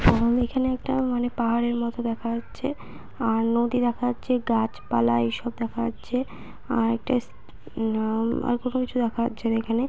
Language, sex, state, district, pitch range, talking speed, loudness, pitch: Bengali, female, West Bengal, Purulia, 230-245 Hz, 160 wpm, -25 LUFS, 235 Hz